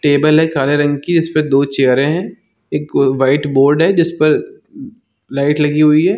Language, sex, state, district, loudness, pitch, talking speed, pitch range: Hindi, male, Chhattisgarh, Raigarh, -14 LUFS, 150 Hz, 185 wpm, 140-165 Hz